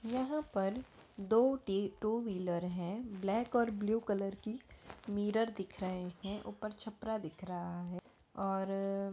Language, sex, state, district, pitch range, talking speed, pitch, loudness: Hindi, female, Bihar, Begusarai, 195-225 Hz, 145 wpm, 205 Hz, -37 LUFS